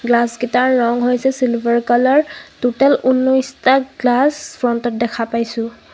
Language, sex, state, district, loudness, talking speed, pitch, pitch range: Assamese, female, Assam, Kamrup Metropolitan, -16 LUFS, 130 wpm, 245 Hz, 235-265 Hz